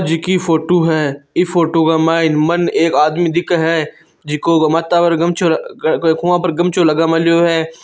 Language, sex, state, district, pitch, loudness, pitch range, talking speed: Marwari, male, Rajasthan, Churu, 165 Hz, -14 LUFS, 160-175 Hz, 160 wpm